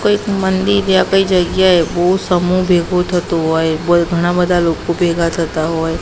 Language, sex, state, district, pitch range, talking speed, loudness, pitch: Gujarati, female, Gujarat, Gandhinagar, 170-185 Hz, 170 wpm, -14 LUFS, 175 Hz